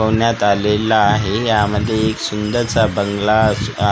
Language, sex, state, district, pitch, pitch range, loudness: Marathi, male, Maharashtra, Gondia, 105 Hz, 105-110 Hz, -16 LUFS